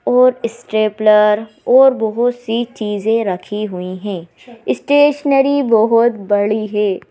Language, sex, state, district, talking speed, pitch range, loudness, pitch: Hindi, female, Madhya Pradesh, Bhopal, 110 wpm, 210-245 Hz, -15 LUFS, 220 Hz